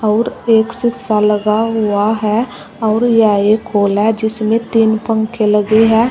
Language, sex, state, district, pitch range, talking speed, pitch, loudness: Hindi, female, Uttar Pradesh, Shamli, 210-225 Hz, 155 wpm, 220 Hz, -14 LUFS